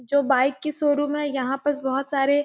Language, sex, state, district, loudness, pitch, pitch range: Hindi, female, Chhattisgarh, Sarguja, -23 LUFS, 280 Hz, 270-290 Hz